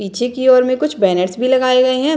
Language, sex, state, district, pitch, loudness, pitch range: Hindi, female, Bihar, Muzaffarpur, 255 Hz, -14 LUFS, 235-260 Hz